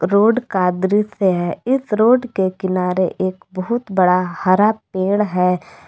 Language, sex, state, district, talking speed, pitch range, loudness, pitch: Hindi, female, Jharkhand, Palamu, 145 wpm, 185-210 Hz, -17 LUFS, 190 Hz